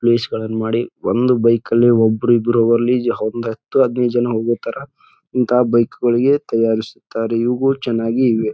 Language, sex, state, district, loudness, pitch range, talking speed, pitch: Kannada, male, Karnataka, Bijapur, -17 LUFS, 115-125 Hz, 155 wpm, 120 Hz